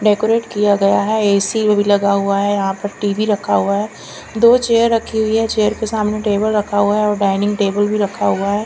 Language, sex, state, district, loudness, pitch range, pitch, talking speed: Hindi, female, Chandigarh, Chandigarh, -16 LUFS, 200-220 Hz, 210 Hz, 230 wpm